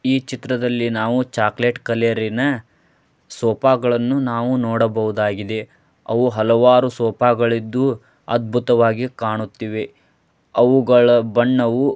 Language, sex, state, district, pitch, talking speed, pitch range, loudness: Kannada, male, Karnataka, Dharwad, 120 Hz, 80 wpm, 115-125 Hz, -18 LUFS